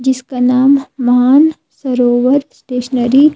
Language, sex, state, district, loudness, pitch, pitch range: Hindi, female, Himachal Pradesh, Shimla, -12 LUFS, 255 Hz, 250-275 Hz